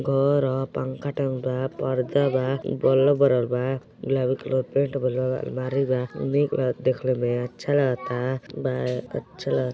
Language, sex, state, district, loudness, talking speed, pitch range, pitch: Hindi, male, Uttar Pradesh, Gorakhpur, -25 LUFS, 125 wpm, 125-135 Hz, 130 Hz